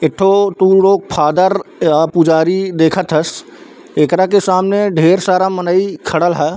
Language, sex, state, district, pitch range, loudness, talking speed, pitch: Chhattisgarhi, male, Chhattisgarh, Bilaspur, 160-190 Hz, -13 LUFS, 135 wpm, 185 Hz